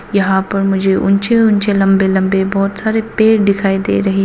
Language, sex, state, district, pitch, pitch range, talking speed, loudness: Hindi, female, Arunachal Pradesh, Papum Pare, 195 Hz, 195-210 Hz, 195 wpm, -13 LUFS